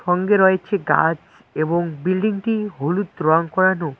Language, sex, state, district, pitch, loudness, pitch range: Bengali, male, West Bengal, Cooch Behar, 185 Hz, -19 LUFS, 165-200 Hz